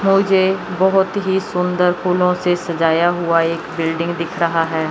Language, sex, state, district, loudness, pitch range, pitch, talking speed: Hindi, male, Chandigarh, Chandigarh, -17 LUFS, 165-190 Hz, 180 Hz, 160 wpm